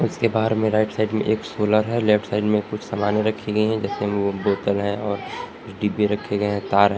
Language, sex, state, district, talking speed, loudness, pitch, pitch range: Hindi, male, Jharkhand, Palamu, 240 wpm, -22 LUFS, 105 Hz, 100-110 Hz